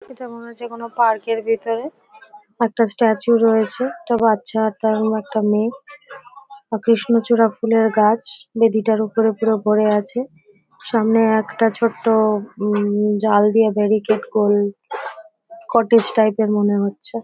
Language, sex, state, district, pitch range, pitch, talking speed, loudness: Bengali, female, West Bengal, Paschim Medinipur, 215-235 Hz, 225 Hz, 120 wpm, -18 LUFS